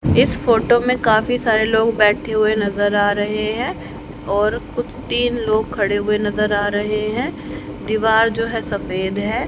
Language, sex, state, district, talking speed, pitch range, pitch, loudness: Hindi, female, Haryana, Rohtak, 170 wpm, 205-230 Hz, 215 Hz, -18 LUFS